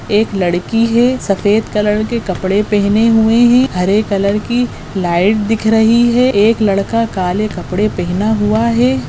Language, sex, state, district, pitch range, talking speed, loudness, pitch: Hindi, female, Goa, North and South Goa, 200-230 Hz, 160 wpm, -13 LUFS, 215 Hz